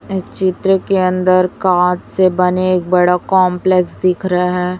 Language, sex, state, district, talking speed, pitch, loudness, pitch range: Hindi, female, Chhattisgarh, Raipur, 160 wpm, 185 Hz, -14 LUFS, 180-185 Hz